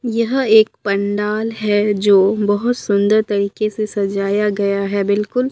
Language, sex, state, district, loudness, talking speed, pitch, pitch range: Hindi, female, Bihar, Katihar, -16 LUFS, 140 wpm, 210 Hz, 200-220 Hz